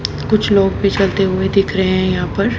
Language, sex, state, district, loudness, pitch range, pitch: Hindi, female, Haryana, Jhajjar, -15 LUFS, 185-200 Hz, 195 Hz